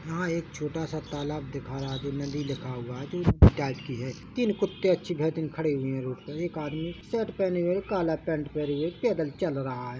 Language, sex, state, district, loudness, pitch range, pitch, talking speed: Hindi, male, Chhattisgarh, Bilaspur, -29 LUFS, 140-175 Hz, 155 Hz, 215 wpm